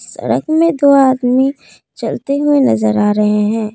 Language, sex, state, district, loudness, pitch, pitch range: Hindi, female, Assam, Kamrup Metropolitan, -13 LUFS, 260 Hz, 210-280 Hz